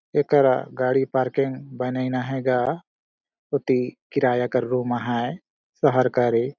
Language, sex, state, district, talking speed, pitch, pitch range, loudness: Surgujia, male, Chhattisgarh, Sarguja, 120 wpm, 125 Hz, 125-135 Hz, -23 LUFS